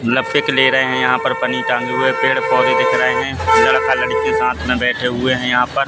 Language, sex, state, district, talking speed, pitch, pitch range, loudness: Hindi, male, Madhya Pradesh, Katni, 235 wpm, 125 Hz, 125-130 Hz, -15 LUFS